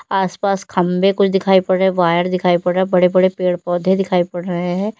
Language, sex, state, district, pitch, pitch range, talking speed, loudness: Hindi, female, Uttar Pradesh, Lalitpur, 185 Hz, 180-190 Hz, 230 wpm, -16 LUFS